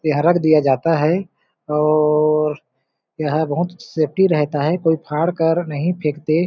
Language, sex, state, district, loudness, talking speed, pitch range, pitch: Hindi, male, Chhattisgarh, Balrampur, -18 LUFS, 150 wpm, 150-170 Hz, 155 Hz